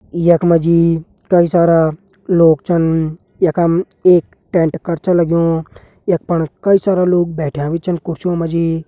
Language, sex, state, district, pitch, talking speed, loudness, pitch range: Hindi, male, Uttarakhand, Uttarkashi, 170 Hz, 160 wpm, -15 LUFS, 165-175 Hz